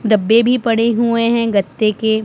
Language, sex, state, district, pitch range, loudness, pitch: Hindi, male, Punjab, Pathankot, 215-235 Hz, -15 LUFS, 230 Hz